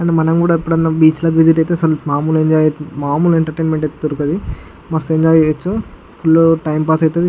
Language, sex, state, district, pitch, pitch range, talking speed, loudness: Telugu, male, Andhra Pradesh, Guntur, 160 Hz, 155-165 Hz, 155 wpm, -14 LUFS